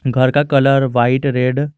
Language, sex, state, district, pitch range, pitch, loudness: Hindi, male, Jharkhand, Garhwa, 130-140 Hz, 135 Hz, -14 LUFS